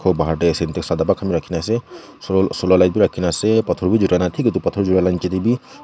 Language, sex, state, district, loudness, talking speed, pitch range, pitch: Nagamese, male, Nagaland, Kohima, -18 LUFS, 285 wpm, 85-100 Hz, 90 Hz